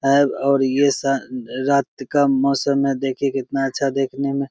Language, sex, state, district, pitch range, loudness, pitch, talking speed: Maithili, male, Bihar, Begusarai, 135-140 Hz, -20 LUFS, 135 Hz, 185 wpm